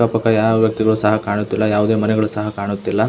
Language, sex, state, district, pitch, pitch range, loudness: Kannada, male, Karnataka, Belgaum, 110 Hz, 105-110 Hz, -17 LUFS